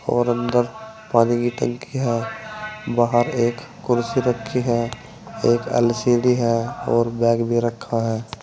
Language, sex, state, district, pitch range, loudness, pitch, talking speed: Hindi, male, Uttar Pradesh, Saharanpur, 115-125 Hz, -21 LUFS, 120 Hz, 135 wpm